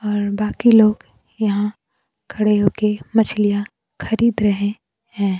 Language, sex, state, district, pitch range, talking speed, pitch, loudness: Hindi, female, Bihar, Kaimur, 205-220 Hz, 110 wpm, 210 Hz, -18 LUFS